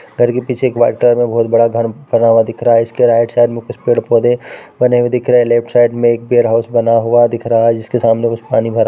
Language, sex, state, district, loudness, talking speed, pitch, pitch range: Hindi, female, Bihar, Darbhanga, -13 LUFS, 275 wpm, 120 Hz, 115-120 Hz